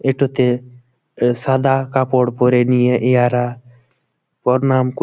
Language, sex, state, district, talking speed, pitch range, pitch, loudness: Bengali, male, West Bengal, Malda, 120 wpm, 125-130 Hz, 125 Hz, -16 LUFS